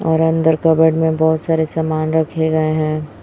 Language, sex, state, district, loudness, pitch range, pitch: Hindi, female, Chhattisgarh, Raipur, -16 LUFS, 155-160 Hz, 160 Hz